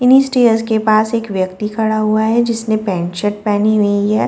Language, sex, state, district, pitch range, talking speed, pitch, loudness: Hindi, female, Delhi, New Delhi, 205-225 Hz, 210 wpm, 215 Hz, -15 LUFS